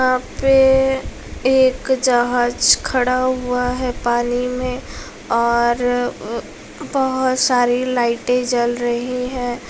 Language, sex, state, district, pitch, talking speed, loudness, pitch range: Hindi, female, Bihar, Lakhisarai, 250 Hz, 100 wpm, -18 LUFS, 245-255 Hz